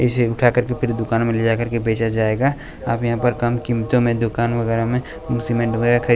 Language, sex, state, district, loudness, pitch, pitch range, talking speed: Hindi, male, Bihar, West Champaran, -19 LUFS, 120 Hz, 115-120 Hz, 245 wpm